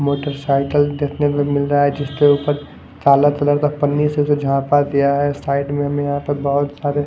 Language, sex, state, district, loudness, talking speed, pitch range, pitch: Hindi, male, Chandigarh, Chandigarh, -17 LUFS, 205 wpm, 140-145 Hz, 145 Hz